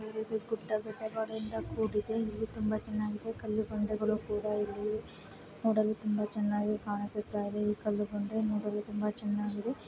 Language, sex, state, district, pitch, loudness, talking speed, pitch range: Kannada, female, Karnataka, Raichur, 215 Hz, -34 LUFS, 120 wpm, 210-220 Hz